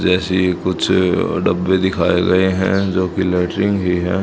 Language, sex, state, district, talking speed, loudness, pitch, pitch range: Hindi, male, Haryana, Charkhi Dadri, 170 wpm, -16 LUFS, 95 Hz, 90-95 Hz